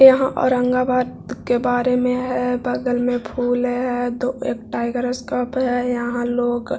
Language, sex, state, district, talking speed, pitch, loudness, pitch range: Hindi, male, Bihar, Jahanabad, 160 wpm, 250 Hz, -20 LUFS, 245-255 Hz